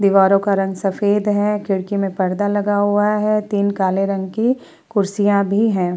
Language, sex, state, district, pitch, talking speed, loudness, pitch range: Hindi, female, Uttar Pradesh, Muzaffarnagar, 200 Hz, 170 wpm, -18 LUFS, 195-205 Hz